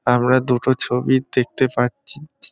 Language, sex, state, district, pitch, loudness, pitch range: Bengali, male, West Bengal, North 24 Parganas, 130 Hz, -19 LUFS, 125-130 Hz